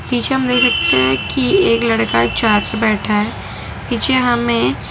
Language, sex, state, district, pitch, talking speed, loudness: Hindi, female, Gujarat, Valsad, 210 Hz, 195 wpm, -15 LUFS